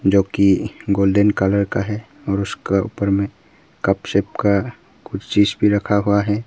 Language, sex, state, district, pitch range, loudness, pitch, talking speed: Hindi, male, Arunachal Pradesh, Papum Pare, 100-105 Hz, -19 LUFS, 100 Hz, 185 wpm